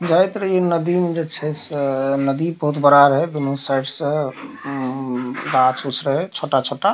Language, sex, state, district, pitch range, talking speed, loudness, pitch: Maithili, male, Bihar, Darbhanga, 135-165 Hz, 175 wpm, -19 LUFS, 145 Hz